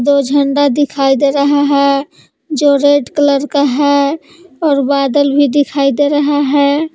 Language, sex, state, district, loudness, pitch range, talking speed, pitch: Hindi, female, Jharkhand, Palamu, -12 LUFS, 280-290 Hz, 155 wpm, 285 Hz